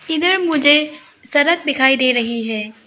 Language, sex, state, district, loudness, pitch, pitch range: Hindi, female, Arunachal Pradesh, Lower Dibang Valley, -15 LUFS, 290 Hz, 245-320 Hz